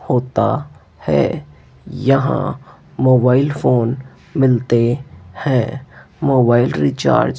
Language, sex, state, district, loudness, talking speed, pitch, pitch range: Hindi, male, Rajasthan, Jaipur, -16 LUFS, 80 wpm, 125 Hz, 120-135 Hz